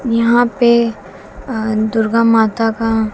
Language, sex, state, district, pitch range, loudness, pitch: Hindi, female, Haryana, Jhajjar, 220-235 Hz, -14 LUFS, 225 Hz